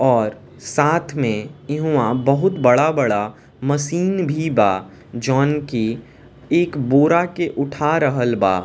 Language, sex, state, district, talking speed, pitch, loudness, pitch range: Bhojpuri, male, Bihar, East Champaran, 120 wpm, 140 Hz, -19 LUFS, 120-150 Hz